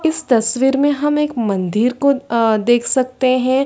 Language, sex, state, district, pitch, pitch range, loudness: Hindi, female, Chhattisgarh, Sarguja, 255 Hz, 235-280 Hz, -16 LUFS